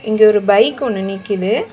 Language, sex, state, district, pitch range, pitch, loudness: Tamil, female, Tamil Nadu, Chennai, 195-220 Hz, 210 Hz, -15 LUFS